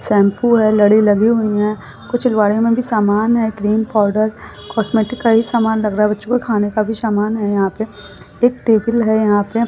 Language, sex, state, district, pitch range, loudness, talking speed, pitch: Hindi, female, Bihar, Araria, 210-230 Hz, -15 LUFS, 200 wpm, 220 Hz